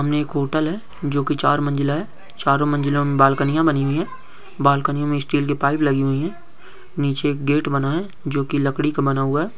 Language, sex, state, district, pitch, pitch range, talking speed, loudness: Hindi, male, West Bengal, Purulia, 145 Hz, 140-150 Hz, 220 wpm, -20 LUFS